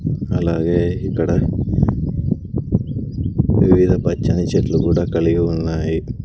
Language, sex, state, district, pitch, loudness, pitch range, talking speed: Telugu, male, Andhra Pradesh, Sri Satya Sai, 85 Hz, -18 LUFS, 80-90 Hz, 65 wpm